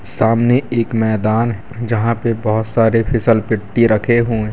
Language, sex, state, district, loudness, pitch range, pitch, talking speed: Hindi, male, Bihar, Purnia, -16 LUFS, 110-120 Hz, 115 Hz, 160 wpm